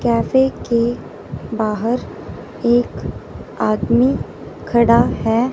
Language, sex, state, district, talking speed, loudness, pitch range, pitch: Hindi, female, Punjab, Fazilka, 75 wpm, -18 LUFS, 225-245 Hz, 235 Hz